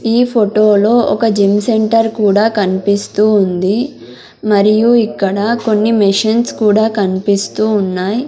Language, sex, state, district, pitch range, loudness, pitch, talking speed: Telugu, female, Andhra Pradesh, Sri Satya Sai, 200-225 Hz, -12 LUFS, 215 Hz, 110 wpm